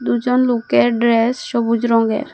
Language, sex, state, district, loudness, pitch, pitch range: Bengali, female, Assam, Hailakandi, -16 LUFS, 230 Hz, 225-245 Hz